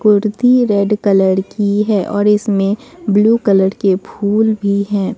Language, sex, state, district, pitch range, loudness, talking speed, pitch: Hindi, female, Bihar, Katihar, 200-215 Hz, -14 LUFS, 150 wpm, 205 Hz